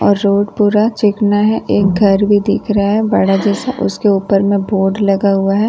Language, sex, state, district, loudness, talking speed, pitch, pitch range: Hindi, female, Bihar, Katihar, -13 LUFS, 220 wpm, 205 Hz, 195-210 Hz